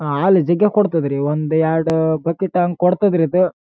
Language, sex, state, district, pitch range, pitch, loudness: Kannada, male, Karnataka, Raichur, 160-185 Hz, 165 Hz, -17 LUFS